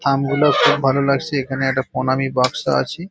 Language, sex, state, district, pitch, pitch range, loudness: Bengali, male, West Bengal, Paschim Medinipur, 135 Hz, 130-140 Hz, -18 LUFS